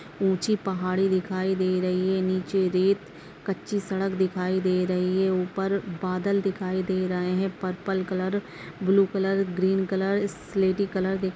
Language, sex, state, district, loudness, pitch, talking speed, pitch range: Hindi, female, Chhattisgarh, Raigarh, -26 LUFS, 190 Hz, 155 wpm, 185-195 Hz